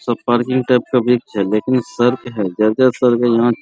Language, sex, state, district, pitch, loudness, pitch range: Hindi, male, Bihar, Araria, 120 Hz, -16 LUFS, 115-125 Hz